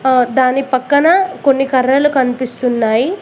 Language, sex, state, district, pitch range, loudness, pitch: Telugu, female, Telangana, Mahabubabad, 255-280 Hz, -13 LUFS, 260 Hz